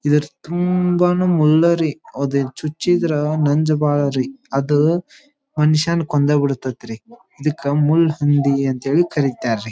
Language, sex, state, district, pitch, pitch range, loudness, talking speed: Kannada, male, Karnataka, Dharwad, 150 Hz, 140-170 Hz, -18 LUFS, 130 wpm